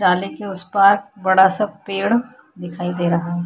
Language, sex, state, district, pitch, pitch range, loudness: Hindi, female, Chhattisgarh, Korba, 190 Hz, 175-200 Hz, -18 LUFS